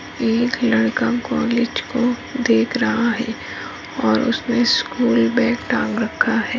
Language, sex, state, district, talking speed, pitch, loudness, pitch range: Hindi, female, Rajasthan, Nagaur, 125 wpm, 240 Hz, -19 LUFS, 230-245 Hz